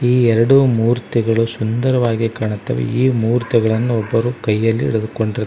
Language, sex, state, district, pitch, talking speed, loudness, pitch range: Kannada, male, Karnataka, Koppal, 115 Hz, 110 wpm, -16 LUFS, 110-120 Hz